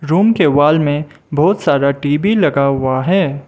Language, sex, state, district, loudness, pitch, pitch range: Hindi, male, Mizoram, Aizawl, -14 LUFS, 150 Hz, 140-180 Hz